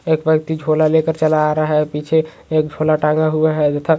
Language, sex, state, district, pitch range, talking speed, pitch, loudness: Magahi, male, Bihar, Gaya, 155-160 Hz, 240 wpm, 155 Hz, -16 LUFS